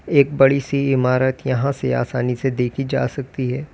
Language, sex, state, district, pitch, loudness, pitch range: Hindi, male, Uttar Pradesh, Lalitpur, 135 Hz, -19 LUFS, 125-140 Hz